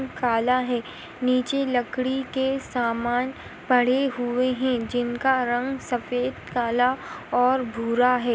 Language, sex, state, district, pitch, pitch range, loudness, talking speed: Hindi, female, Maharashtra, Sindhudurg, 250 Hz, 245-260 Hz, -24 LUFS, 115 wpm